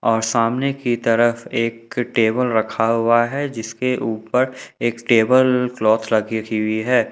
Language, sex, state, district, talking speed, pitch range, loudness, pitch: Hindi, male, Jharkhand, Ranchi, 150 wpm, 110-125 Hz, -19 LUFS, 115 Hz